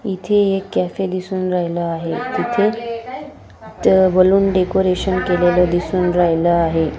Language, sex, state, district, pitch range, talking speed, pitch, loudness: Marathi, female, Maharashtra, Dhule, 175-195 Hz, 120 wpm, 185 Hz, -17 LUFS